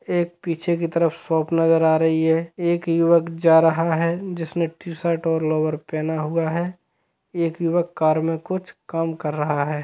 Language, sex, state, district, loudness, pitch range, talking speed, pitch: Hindi, male, Chhattisgarh, Sukma, -21 LUFS, 160-170 Hz, 190 wpm, 165 Hz